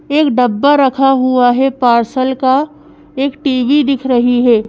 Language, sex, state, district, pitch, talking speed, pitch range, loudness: Hindi, female, Madhya Pradesh, Bhopal, 265 Hz, 155 wpm, 245-275 Hz, -12 LUFS